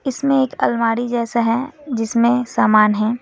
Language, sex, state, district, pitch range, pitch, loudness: Hindi, female, West Bengal, Alipurduar, 230-260 Hz, 235 Hz, -17 LUFS